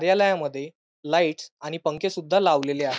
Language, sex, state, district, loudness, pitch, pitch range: Marathi, male, Maharashtra, Aurangabad, -24 LUFS, 160 Hz, 145-185 Hz